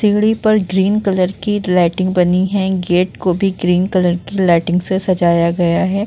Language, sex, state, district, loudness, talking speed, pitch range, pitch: Hindi, female, Uttar Pradesh, Muzaffarnagar, -15 LUFS, 190 wpm, 180-195 Hz, 185 Hz